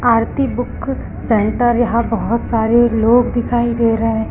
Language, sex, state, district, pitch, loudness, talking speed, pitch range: Hindi, female, Uttar Pradesh, Lucknow, 235 Hz, -16 LUFS, 140 wpm, 225-240 Hz